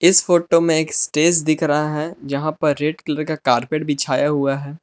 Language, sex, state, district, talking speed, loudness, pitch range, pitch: Hindi, male, Jharkhand, Palamu, 210 wpm, -18 LUFS, 145-160 Hz, 155 Hz